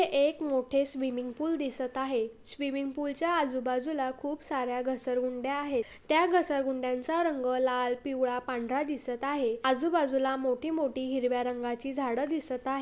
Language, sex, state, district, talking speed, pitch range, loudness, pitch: Marathi, female, Maharashtra, Pune, 135 wpm, 255-285 Hz, -31 LUFS, 265 Hz